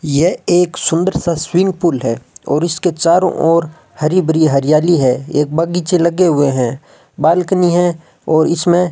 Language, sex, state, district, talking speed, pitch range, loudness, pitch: Hindi, female, Rajasthan, Bikaner, 170 wpm, 150-175 Hz, -14 LUFS, 165 Hz